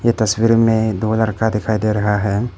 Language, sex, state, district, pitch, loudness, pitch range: Hindi, male, Arunachal Pradesh, Papum Pare, 110 Hz, -17 LUFS, 105-115 Hz